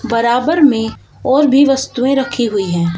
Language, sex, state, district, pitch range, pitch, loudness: Hindi, female, Uttar Pradesh, Shamli, 225-275 Hz, 255 Hz, -13 LUFS